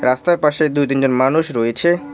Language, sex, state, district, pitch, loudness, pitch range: Bengali, male, West Bengal, Cooch Behar, 145 Hz, -16 LUFS, 130-160 Hz